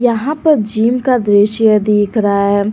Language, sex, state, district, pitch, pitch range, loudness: Hindi, female, Jharkhand, Garhwa, 220 Hz, 205-245 Hz, -13 LUFS